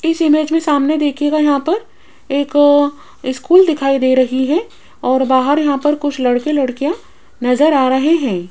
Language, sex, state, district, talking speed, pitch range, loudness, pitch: Hindi, female, Rajasthan, Jaipur, 170 wpm, 265-305 Hz, -14 LUFS, 290 Hz